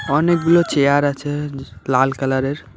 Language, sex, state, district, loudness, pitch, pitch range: Bengali, male, West Bengal, Alipurduar, -18 LUFS, 140 Hz, 135-150 Hz